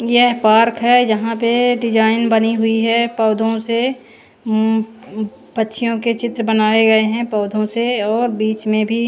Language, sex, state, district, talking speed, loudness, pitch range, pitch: Hindi, female, Chandigarh, Chandigarh, 160 wpm, -16 LUFS, 220-235 Hz, 225 Hz